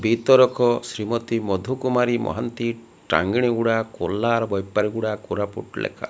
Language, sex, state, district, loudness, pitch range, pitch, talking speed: Odia, male, Odisha, Malkangiri, -22 LUFS, 105-120 Hz, 115 Hz, 120 wpm